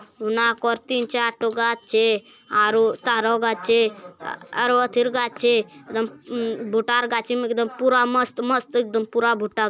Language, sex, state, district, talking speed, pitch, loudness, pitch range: Angika, female, Bihar, Bhagalpur, 95 wpm, 235 Hz, -21 LUFS, 225-245 Hz